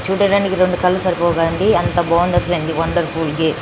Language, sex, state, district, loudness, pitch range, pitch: Telugu, female, Telangana, Nalgonda, -16 LUFS, 165-185 Hz, 175 Hz